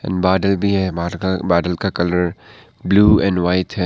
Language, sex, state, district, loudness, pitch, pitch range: Hindi, male, Arunachal Pradesh, Papum Pare, -17 LUFS, 95 Hz, 90-95 Hz